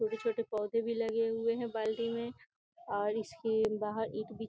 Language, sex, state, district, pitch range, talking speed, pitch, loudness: Hindi, female, Bihar, Gopalganj, 220-230 Hz, 200 wpm, 225 Hz, -35 LUFS